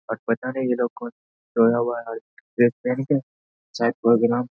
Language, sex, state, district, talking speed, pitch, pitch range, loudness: Hindi, male, Bihar, Saharsa, 215 wpm, 120 Hz, 115-125 Hz, -22 LUFS